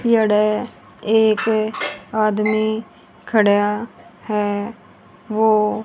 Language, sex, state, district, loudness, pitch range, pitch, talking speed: Hindi, female, Haryana, Rohtak, -19 LUFS, 210-220 Hz, 215 Hz, 60 wpm